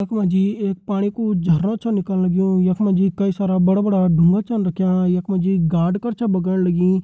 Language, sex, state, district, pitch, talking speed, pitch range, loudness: Hindi, male, Uttarakhand, Tehri Garhwal, 190 Hz, 205 wpm, 185-200 Hz, -19 LUFS